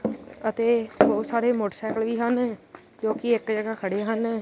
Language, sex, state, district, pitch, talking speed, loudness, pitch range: Punjabi, male, Punjab, Kapurthala, 225 Hz, 165 wpm, -25 LUFS, 220-235 Hz